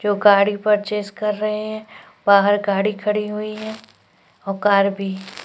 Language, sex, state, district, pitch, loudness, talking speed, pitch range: Hindi, female, Chhattisgarh, Korba, 210 Hz, -19 LUFS, 155 wpm, 200-210 Hz